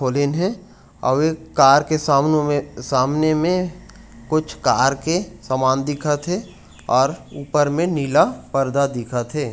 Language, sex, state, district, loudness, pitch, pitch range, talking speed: Chhattisgarhi, male, Chhattisgarh, Raigarh, -19 LUFS, 145 Hz, 135-155 Hz, 145 wpm